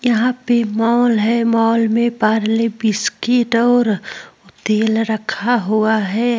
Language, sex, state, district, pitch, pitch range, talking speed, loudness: Hindi, female, Uttar Pradesh, Jalaun, 225 Hz, 220-240 Hz, 130 wpm, -16 LUFS